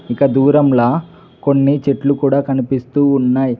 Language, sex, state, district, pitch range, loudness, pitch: Telugu, male, Telangana, Mahabubabad, 135-140 Hz, -14 LUFS, 140 Hz